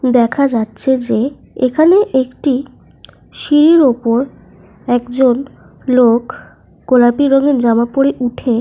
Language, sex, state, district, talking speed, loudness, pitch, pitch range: Bengali, female, Jharkhand, Sahebganj, 100 wpm, -13 LUFS, 255 Hz, 240-275 Hz